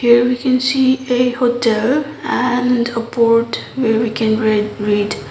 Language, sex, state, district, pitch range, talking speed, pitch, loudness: English, female, Sikkim, Gangtok, 225-250 Hz, 160 wpm, 240 Hz, -16 LUFS